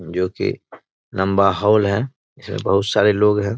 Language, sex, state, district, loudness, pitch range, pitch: Hindi, male, Bihar, Bhagalpur, -18 LUFS, 95-105 Hz, 100 Hz